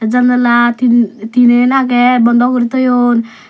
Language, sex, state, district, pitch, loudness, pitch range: Chakma, female, Tripura, Dhalai, 245 Hz, -11 LUFS, 240-250 Hz